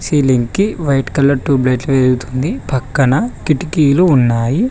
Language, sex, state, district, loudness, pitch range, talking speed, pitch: Telugu, male, Telangana, Mahabubabad, -14 LUFS, 130-155 Hz, 140 wpm, 135 Hz